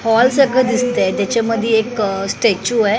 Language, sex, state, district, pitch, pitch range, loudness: Marathi, female, Maharashtra, Mumbai Suburban, 230 Hz, 220-245 Hz, -16 LUFS